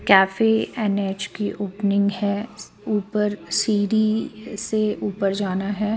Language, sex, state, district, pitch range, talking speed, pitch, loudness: Hindi, female, Bihar, Patna, 200-215 Hz, 120 wpm, 205 Hz, -22 LUFS